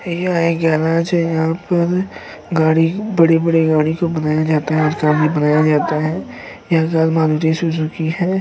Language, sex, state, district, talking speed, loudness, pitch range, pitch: Hindi, male, Uttar Pradesh, Hamirpur, 150 wpm, -16 LUFS, 155-170 Hz, 160 Hz